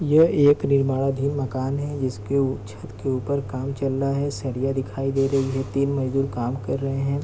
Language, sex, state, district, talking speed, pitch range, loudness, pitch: Hindi, male, Bihar, Gopalganj, 200 wpm, 130-140 Hz, -23 LUFS, 135 Hz